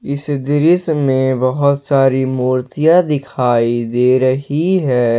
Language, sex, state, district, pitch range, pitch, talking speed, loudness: Hindi, male, Jharkhand, Ranchi, 130-145 Hz, 135 Hz, 115 wpm, -15 LUFS